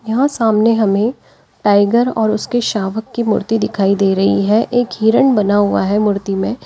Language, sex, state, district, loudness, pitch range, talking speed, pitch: Hindi, female, Uttar Pradesh, Lalitpur, -15 LUFS, 205-230 Hz, 180 wpm, 215 Hz